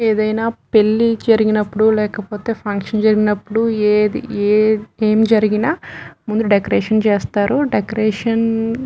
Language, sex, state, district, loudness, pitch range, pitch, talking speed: Telugu, female, Telangana, Nalgonda, -16 LUFS, 210-225 Hz, 215 Hz, 90 wpm